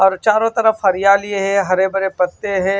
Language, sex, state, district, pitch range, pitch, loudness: Hindi, male, Maharashtra, Washim, 190-205 Hz, 195 Hz, -16 LUFS